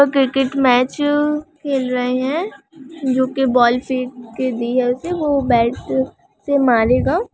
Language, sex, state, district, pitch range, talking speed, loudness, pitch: Hindi, female, Bihar, Sitamarhi, 250-285 Hz, 130 wpm, -18 LUFS, 265 Hz